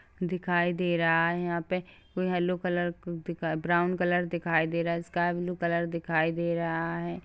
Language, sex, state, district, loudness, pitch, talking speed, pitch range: Hindi, female, Bihar, Gaya, -29 LUFS, 175 Hz, 180 wpm, 170-175 Hz